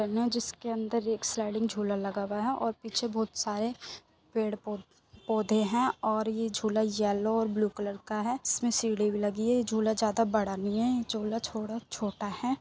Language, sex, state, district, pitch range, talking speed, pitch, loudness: Hindi, female, Uttar Pradesh, Muzaffarnagar, 210-230 Hz, 195 wpm, 220 Hz, -30 LUFS